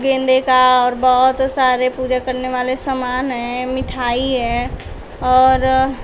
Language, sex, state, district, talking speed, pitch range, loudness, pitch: Hindi, female, Uttar Pradesh, Shamli, 130 wpm, 250-260 Hz, -16 LUFS, 255 Hz